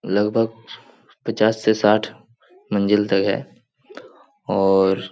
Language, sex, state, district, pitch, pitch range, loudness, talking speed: Hindi, male, Bihar, Jahanabad, 105 Hz, 100-115 Hz, -19 LUFS, 105 wpm